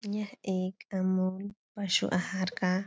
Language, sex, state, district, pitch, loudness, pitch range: Hindi, female, Bihar, Supaul, 190 Hz, -32 LUFS, 185-200 Hz